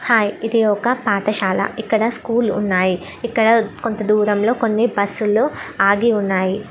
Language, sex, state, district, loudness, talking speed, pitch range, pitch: Telugu, female, Andhra Pradesh, Guntur, -18 LUFS, 135 wpm, 200-230 Hz, 215 Hz